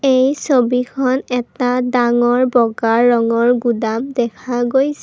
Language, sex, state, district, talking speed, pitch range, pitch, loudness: Assamese, female, Assam, Kamrup Metropolitan, 105 wpm, 240-255 Hz, 245 Hz, -16 LUFS